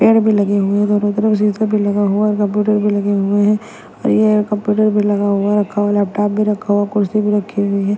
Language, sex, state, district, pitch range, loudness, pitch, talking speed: Hindi, female, Punjab, Kapurthala, 205-210 Hz, -15 LUFS, 205 Hz, 250 wpm